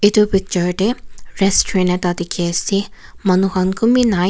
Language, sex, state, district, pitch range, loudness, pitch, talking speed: Nagamese, female, Nagaland, Kohima, 180-205 Hz, -17 LUFS, 190 Hz, 155 wpm